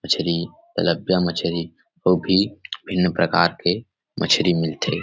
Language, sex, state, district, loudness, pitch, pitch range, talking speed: Chhattisgarhi, male, Chhattisgarh, Rajnandgaon, -21 LUFS, 90 Hz, 85-95 Hz, 120 wpm